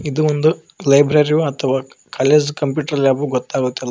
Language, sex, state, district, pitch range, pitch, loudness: Kannada, male, Karnataka, Koppal, 135-150 Hz, 145 Hz, -17 LUFS